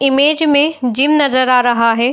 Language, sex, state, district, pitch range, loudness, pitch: Hindi, female, Uttar Pradesh, Muzaffarnagar, 250-295 Hz, -12 LUFS, 270 Hz